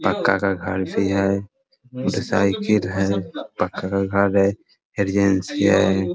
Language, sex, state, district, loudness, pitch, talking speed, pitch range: Hindi, male, Bihar, Muzaffarpur, -21 LUFS, 100 Hz, 105 wpm, 95-100 Hz